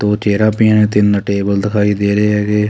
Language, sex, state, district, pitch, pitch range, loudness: Punjabi, male, Punjab, Kapurthala, 105 Hz, 100-105 Hz, -13 LUFS